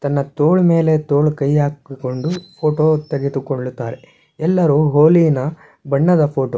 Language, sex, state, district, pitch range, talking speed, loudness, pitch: Kannada, male, Karnataka, Shimoga, 140-160 Hz, 120 wpm, -16 LUFS, 150 Hz